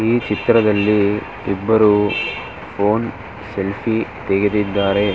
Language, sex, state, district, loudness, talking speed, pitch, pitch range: Kannada, male, Karnataka, Dharwad, -18 LUFS, 70 wpm, 105 Hz, 100-110 Hz